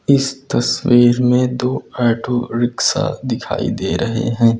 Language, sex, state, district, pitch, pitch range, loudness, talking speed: Hindi, male, Uttar Pradesh, Lucknow, 120 Hz, 115-125 Hz, -17 LUFS, 130 wpm